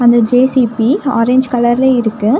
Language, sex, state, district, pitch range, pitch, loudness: Tamil, female, Tamil Nadu, Nilgiris, 235-260 Hz, 245 Hz, -12 LUFS